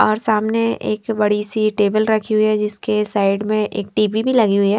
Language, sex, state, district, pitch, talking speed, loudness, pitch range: Hindi, female, Himachal Pradesh, Shimla, 215 Hz, 210 wpm, -18 LUFS, 210-220 Hz